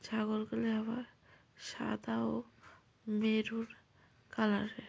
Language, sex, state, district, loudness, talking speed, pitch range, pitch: Bengali, female, West Bengal, Paschim Medinipur, -37 LUFS, 85 wpm, 145-225 Hz, 215 Hz